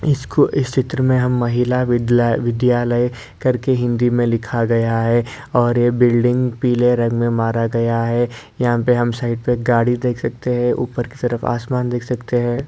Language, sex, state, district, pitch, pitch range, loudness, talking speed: Hindi, male, Uttar Pradesh, Ghazipur, 120 Hz, 120-125 Hz, -18 LUFS, 185 wpm